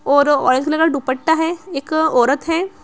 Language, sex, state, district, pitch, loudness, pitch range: Hindi, female, Bihar, Araria, 300 Hz, -17 LUFS, 275-325 Hz